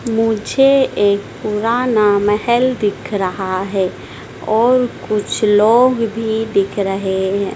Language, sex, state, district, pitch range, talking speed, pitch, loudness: Hindi, female, Madhya Pradesh, Dhar, 200-230 Hz, 110 wpm, 215 Hz, -16 LUFS